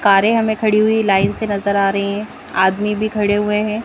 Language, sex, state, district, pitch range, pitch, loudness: Hindi, female, Madhya Pradesh, Bhopal, 200-215 Hz, 210 Hz, -16 LUFS